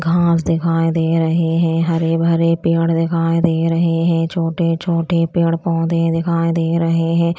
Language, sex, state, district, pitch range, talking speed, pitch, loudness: Hindi, female, Chandigarh, Chandigarh, 165-170 Hz, 160 wpm, 165 Hz, -16 LUFS